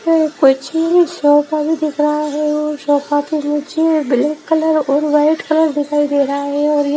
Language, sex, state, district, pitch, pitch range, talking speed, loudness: Hindi, female, Haryana, Rohtak, 300 Hz, 290-315 Hz, 145 wpm, -15 LUFS